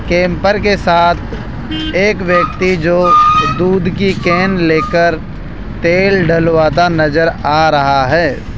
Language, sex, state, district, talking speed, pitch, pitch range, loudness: Hindi, male, Rajasthan, Jaipur, 110 wpm, 175 Hz, 160-185 Hz, -11 LUFS